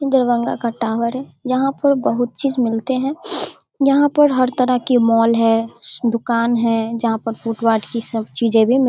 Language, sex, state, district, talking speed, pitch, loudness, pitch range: Hindi, female, Bihar, Darbhanga, 190 wpm, 235 Hz, -18 LUFS, 230-265 Hz